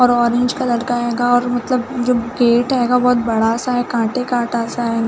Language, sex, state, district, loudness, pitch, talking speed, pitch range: Hindi, female, Uttar Pradesh, Budaun, -17 LUFS, 245 Hz, 225 wpm, 235-250 Hz